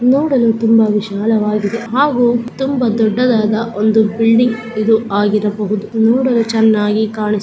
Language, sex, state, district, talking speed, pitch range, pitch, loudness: Kannada, female, Karnataka, Bellary, 115 wpm, 215-235 Hz, 225 Hz, -14 LUFS